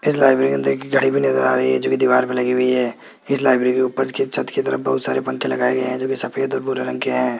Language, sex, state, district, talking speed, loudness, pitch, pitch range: Hindi, male, Rajasthan, Jaipur, 325 wpm, -18 LUFS, 125 Hz, 120-135 Hz